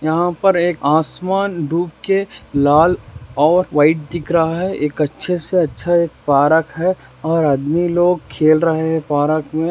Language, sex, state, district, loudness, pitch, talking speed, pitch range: Hindi, male, Rajasthan, Nagaur, -16 LUFS, 160 Hz, 160 wpm, 150-175 Hz